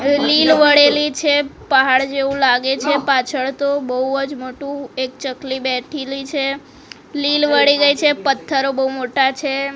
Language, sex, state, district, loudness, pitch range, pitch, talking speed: Gujarati, female, Gujarat, Gandhinagar, -16 LUFS, 265-285 Hz, 275 Hz, 140 wpm